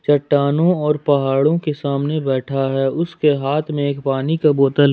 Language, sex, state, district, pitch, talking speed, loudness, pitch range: Hindi, male, Jharkhand, Ranchi, 145 Hz, 185 wpm, -18 LUFS, 140-150 Hz